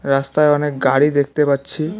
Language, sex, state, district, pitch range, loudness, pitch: Bengali, male, West Bengal, Cooch Behar, 140-150 Hz, -16 LUFS, 145 Hz